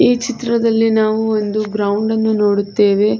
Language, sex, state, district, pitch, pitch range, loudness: Kannada, female, Karnataka, Chamarajanagar, 215 Hz, 205-225 Hz, -15 LUFS